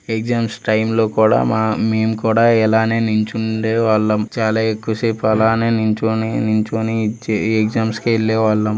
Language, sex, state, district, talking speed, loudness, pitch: Telugu, male, Andhra Pradesh, Srikakulam, 130 wpm, -17 LUFS, 110 Hz